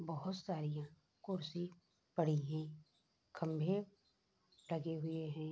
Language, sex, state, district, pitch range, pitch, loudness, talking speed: Hindi, female, Bihar, Bhagalpur, 155-175 Hz, 160 Hz, -42 LUFS, 100 wpm